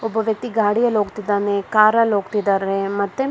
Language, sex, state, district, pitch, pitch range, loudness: Kannada, female, Karnataka, Bangalore, 210 Hz, 200-225 Hz, -19 LUFS